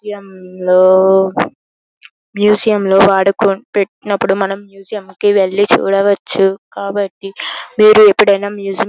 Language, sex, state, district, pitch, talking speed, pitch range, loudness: Telugu, female, Andhra Pradesh, Guntur, 200 Hz, 100 wpm, 195-205 Hz, -12 LUFS